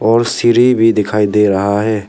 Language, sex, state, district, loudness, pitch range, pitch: Hindi, male, Arunachal Pradesh, Papum Pare, -12 LUFS, 105-115 Hz, 105 Hz